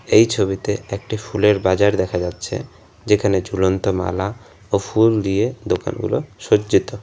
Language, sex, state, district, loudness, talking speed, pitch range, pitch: Bengali, male, West Bengal, Alipurduar, -19 LUFS, 130 wpm, 95-105 Hz, 100 Hz